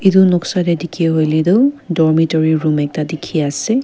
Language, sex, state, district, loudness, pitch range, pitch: Nagamese, female, Nagaland, Kohima, -15 LUFS, 155-185 Hz, 165 Hz